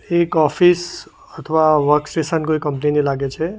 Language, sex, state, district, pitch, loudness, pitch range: Gujarati, male, Gujarat, Valsad, 155 Hz, -17 LUFS, 150-165 Hz